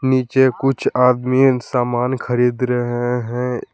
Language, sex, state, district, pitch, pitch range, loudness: Hindi, male, Jharkhand, Palamu, 125 Hz, 125-130 Hz, -17 LUFS